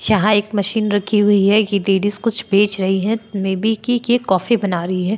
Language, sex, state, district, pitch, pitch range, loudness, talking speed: Hindi, female, Maharashtra, Chandrapur, 205 Hz, 195-220 Hz, -17 LUFS, 230 wpm